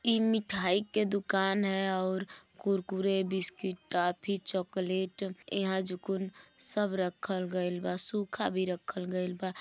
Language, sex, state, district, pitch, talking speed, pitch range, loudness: Bhojpuri, female, Uttar Pradesh, Gorakhpur, 190 Hz, 130 wpm, 185-195 Hz, -32 LUFS